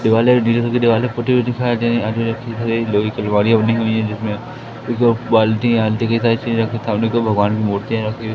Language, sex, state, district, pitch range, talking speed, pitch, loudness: Hindi, male, Madhya Pradesh, Katni, 110-120 Hz, 215 wpm, 115 Hz, -17 LUFS